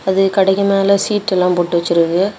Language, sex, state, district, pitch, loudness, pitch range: Tamil, female, Tamil Nadu, Kanyakumari, 190 Hz, -14 LUFS, 180-200 Hz